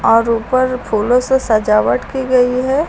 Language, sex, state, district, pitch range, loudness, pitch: Hindi, female, Uttar Pradesh, Lucknow, 220-260 Hz, -14 LUFS, 250 Hz